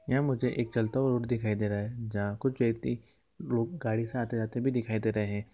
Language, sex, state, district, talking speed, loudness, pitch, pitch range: Maithili, male, Bihar, Samastipur, 225 wpm, -31 LUFS, 115 Hz, 110-125 Hz